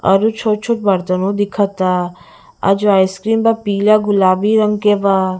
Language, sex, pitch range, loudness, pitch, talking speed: Bhojpuri, female, 190-215 Hz, -15 LUFS, 200 Hz, 190 wpm